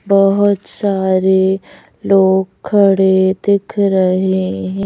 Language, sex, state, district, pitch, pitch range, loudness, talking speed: Hindi, female, Madhya Pradesh, Bhopal, 190 Hz, 190-200 Hz, -14 LUFS, 85 wpm